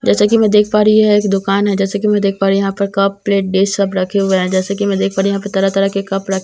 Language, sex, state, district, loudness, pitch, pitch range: Hindi, female, Bihar, Katihar, -14 LUFS, 195 Hz, 195-205 Hz